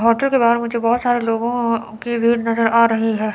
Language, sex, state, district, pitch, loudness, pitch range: Hindi, female, Chandigarh, Chandigarh, 230 Hz, -17 LUFS, 230-235 Hz